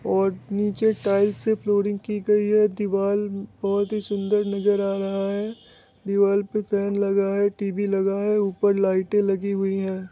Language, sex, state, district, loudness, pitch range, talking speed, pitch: Hindi, male, Bihar, Muzaffarpur, -23 LUFS, 195-210 Hz, 170 wpm, 200 Hz